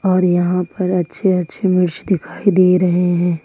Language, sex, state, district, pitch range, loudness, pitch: Hindi, female, Jharkhand, Ranchi, 175-185 Hz, -16 LUFS, 180 Hz